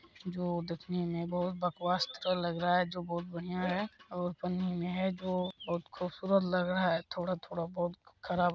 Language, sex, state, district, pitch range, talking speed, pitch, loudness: Hindi, male, Bihar, East Champaran, 175-185 Hz, 190 wpm, 180 Hz, -34 LUFS